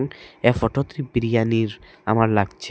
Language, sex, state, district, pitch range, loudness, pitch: Bengali, male, Assam, Hailakandi, 110-125 Hz, -22 LUFS, 115 Hz